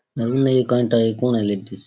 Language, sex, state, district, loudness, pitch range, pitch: Rajasthani, male, Rajasthan, Churu, -19 LUFS, 110-125 Hz, 120 Hz